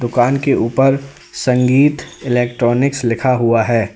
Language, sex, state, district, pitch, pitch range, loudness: Hindi, male, Uttar Pradesh, Lalitpur, 125 Hz, 120-135 Hz, -15 LUFS